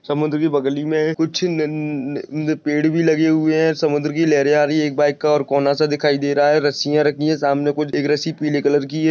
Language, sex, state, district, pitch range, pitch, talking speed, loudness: Hindi, male, Maharashtra, Sindhudurg, 145-155 Hz, 150 Hz, 250 wpm, -18 LUFS